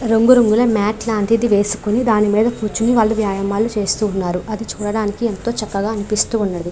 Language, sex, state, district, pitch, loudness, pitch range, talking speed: Telugu, female, Andhra Pradesh, Krishna, 215 Hz, -17 LUFS, 205-225 Hz, 150 wpm